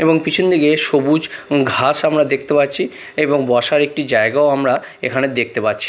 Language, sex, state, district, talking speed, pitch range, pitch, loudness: Bengali, male, Odisha, Khordha, 165 wpm, 135-150 Hz, 145 Hz, -16 LUFS